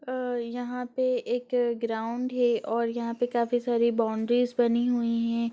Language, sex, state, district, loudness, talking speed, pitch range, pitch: Hindi, female, Bihar, Gaya, -27 LUFS, 165 wpm, 235-245 Hz, 240 Hz